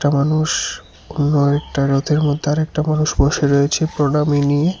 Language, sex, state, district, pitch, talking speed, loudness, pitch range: Bengali, male, Tripura, West Tripura, 145 Hz, 135 wpm, -17 LUFS, 145-155 Hz